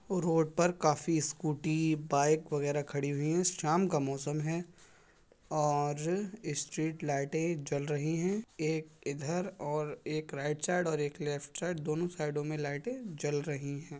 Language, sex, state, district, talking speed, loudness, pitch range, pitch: Hindi, male, Uttar Pradesh, Budaun, 155 wpm, -34 LUFS, 145-170 Hz, 155 Hz